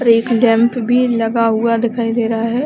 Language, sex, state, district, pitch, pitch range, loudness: Hindi, female, Chhattisgarh, Balrampur, 230 Hz, 230-240 Hz, -15 LUFS